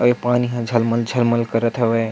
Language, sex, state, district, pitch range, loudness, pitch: Chhattisgarhi, male, Chhattisgarh, Sukma, 115-120 Hz, -19 LUFS, 115 Hz